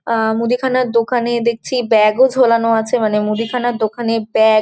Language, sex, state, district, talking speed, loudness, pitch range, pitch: Bengali, female, West Bengal, Jhargram, 170 wpm, -15 LUFS, 220-245 Hz, 230 Hz